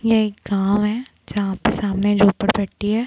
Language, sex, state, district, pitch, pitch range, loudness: Hindi, female, Chhattisgarh, Bilaspur, 205 Hz, 200-220 Hz, -20 LUFS